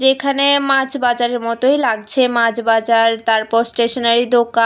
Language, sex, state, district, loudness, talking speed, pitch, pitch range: Bengali, female, Tripura, West Tripura, -15 LUFS, 130 wpm, 235 Hz, 230-265 Hz